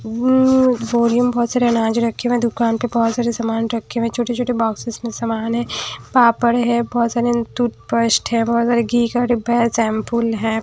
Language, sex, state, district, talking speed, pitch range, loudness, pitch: Hindi, female, Haryana, Jhajjar, 205 wpm, 230-240 Hz, -18 LUFS, 235 Hz